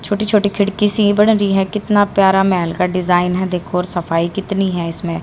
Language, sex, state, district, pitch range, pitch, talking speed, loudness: Hindi, female, Haryana, Rohtak, 180-205 Hz, 195 Hz, 215 wpm, -16 LUFS